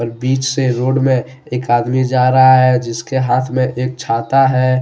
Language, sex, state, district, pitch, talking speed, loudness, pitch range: Hindi, male, Jharkhand, Deoghar, 130 Hz, 185 wpm, -14 LUFS, 125-130 Hz